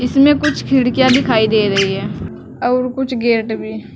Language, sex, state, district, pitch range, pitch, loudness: Hindi, female, Uttar Pradesh, Saharanpur, 220-260 Hz, 245 Hz, -15 LUFS